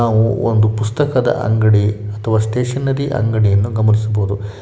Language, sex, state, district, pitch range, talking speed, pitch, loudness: Kannada, male, Karnataka, Shimoga, 105-120 Hz, 105 wpm, 110 Hz, -16 LUFS